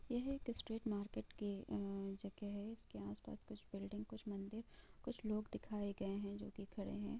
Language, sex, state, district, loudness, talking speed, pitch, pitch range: Hindi, female, Bihar, East Champaran, -47 LUFS, 200 wpm, 205 Hz, 195-220 Hz